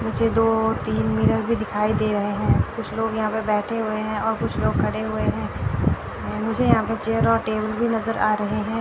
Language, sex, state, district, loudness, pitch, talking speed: Hindi, female, Chandigarh, Chandigarh, -22 LUFS, 215 Hz, 225 wpm